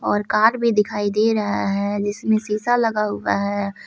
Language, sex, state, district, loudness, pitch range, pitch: Hindi, male, Jharkhand, Palamu, -20 LUFS, 205-220 Hz, 210 Hz